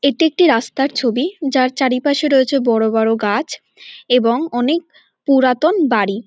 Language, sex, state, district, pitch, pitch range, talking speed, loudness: Bengali, female, West Bengal, North 24 Parganas, 265 Hz, 235-290 Hz, 135 wpm, -16 LUFS